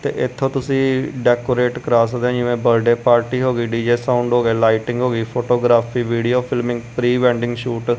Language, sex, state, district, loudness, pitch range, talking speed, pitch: Punjabi, male, Punjab, Kapurthala, -18 LUFS, 120-125 Hz, 190 wpm, 120 Hz